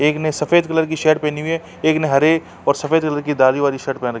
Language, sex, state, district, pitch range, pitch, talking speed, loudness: Hindi, male, Uttar Pradesh, Jalaun, 140-160 Hz, 150 Hz, 285 wpm, -17 LUFS